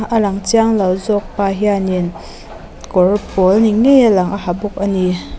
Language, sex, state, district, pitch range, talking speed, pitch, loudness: Mizo, female, Mizoram, Aizawl, 185-215 Hz, 190 wpm, 200 Hz, -14 LUFS